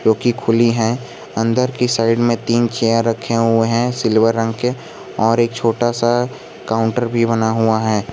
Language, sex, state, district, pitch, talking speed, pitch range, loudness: Hindi, male, Jharkhand, Garhwa, 115 Hz, 170 wpm, 115-120 Hz, -17 LUFS